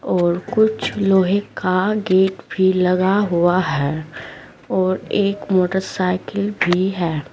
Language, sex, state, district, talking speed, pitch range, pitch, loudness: Hindi, female, Uttar Pradesh, Saharanpur, 115 wpm, 175-195 Hz, 185 Hz, -18 LUFS